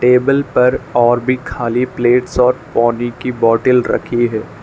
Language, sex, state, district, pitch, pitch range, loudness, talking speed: Hindi, male, Arunachal Pradesh, Lower Dibang Valley, 125 Hz, 120-125 Hz, -14 LUFS, 155 wpm